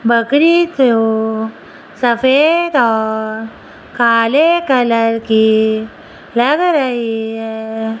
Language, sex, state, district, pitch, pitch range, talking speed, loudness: Hindi, female, Rajasthan, Jaipur, 230 Hz, 220-265 Hz, 75 wpm, -14 LUFS